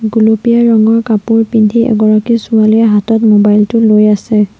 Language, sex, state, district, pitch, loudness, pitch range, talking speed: Assamese, female, Assam, Sonitpur, 220 Hz, -9 LUFS, 215-225 Hz, 145 wpm